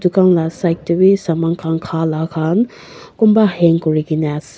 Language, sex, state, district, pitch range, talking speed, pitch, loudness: Nagamese, female, Nagaland, Kohima, 160-185 Hz, 195 wpm, 165 Hz, -15 LUFS